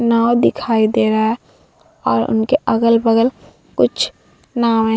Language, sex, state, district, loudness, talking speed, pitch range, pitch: Hindi, female, Bihar, Vaishali, -16 LUFS, 135 wpm, 225-235 Hz, 230 Hz